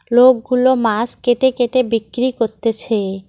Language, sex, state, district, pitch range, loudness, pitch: Bengali, female, West Bengal, Cooch Behar, 230-255 Hz, -16 LUFS, 240 Hz